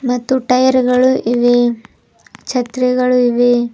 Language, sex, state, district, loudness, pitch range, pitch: Kannada, female, Karnataka, Bidar, -14 LUFS, 245-255 Hz, 250 Hz